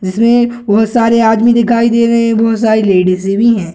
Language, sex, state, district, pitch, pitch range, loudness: Hindi, male, Bihar, Gaya, 230 Hz, 210-235 Hz, -10 LUFS